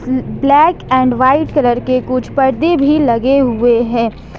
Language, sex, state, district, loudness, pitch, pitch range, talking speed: Hindi, female, Jharkhand, Ranchi, -13 LUFS, 260 Hz, 245-280 Hz, 150 wpm